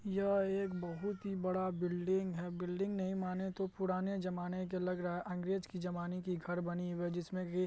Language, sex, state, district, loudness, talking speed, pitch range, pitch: Hindi, male, Bihar, Madhepura, -39 LUFS, 210 wpm, 175-190 Hz, 185 Hz